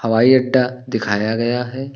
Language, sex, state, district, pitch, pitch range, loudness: Hindi, male, Uttar Pradesh, Lucknow, 125 Hz, 115-130 Hz, -17 LUFS